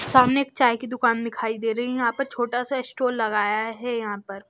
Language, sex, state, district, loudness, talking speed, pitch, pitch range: Hindi, male, Maharashtra, Washim, -24 LUFS, 240 wpm, 240 Hz, 225-250 Hz